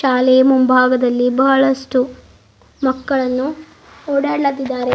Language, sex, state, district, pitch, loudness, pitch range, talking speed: Kannada, female, Karnataka, Bidar, 260 Hz, -15 LUFS, 255-270 Hz, 60 wpm